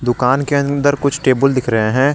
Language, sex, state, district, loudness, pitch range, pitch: Hindi, male, Jharkhand, Garhwa, -15 LUFS, 125-140 Hz, 135 Hz